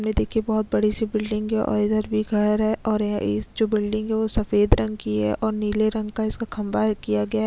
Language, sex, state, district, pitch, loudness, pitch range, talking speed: Hindi, female, Uttarakhand, Tehri Garhwal, 215 Hz, -23 LUFS, 210-220 Hz, 255 wpm